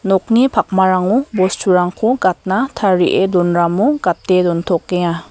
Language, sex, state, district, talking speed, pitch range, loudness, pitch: Garo, female, Meghalaya, West Garo Hills, 90 wpm, 180-215 Hz, -15 LUFS, 185 Hz